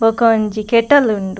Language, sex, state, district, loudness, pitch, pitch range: Tulu, female, Karnataka, Dakshina Kannada, -14 LUFS, 225 Hz, 215-230 Hz